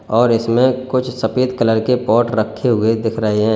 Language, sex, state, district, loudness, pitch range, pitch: Hindi, male, Uttar Pradesh, Lalitpur, -16 LUFS, 110-125 Hz, 115 Hz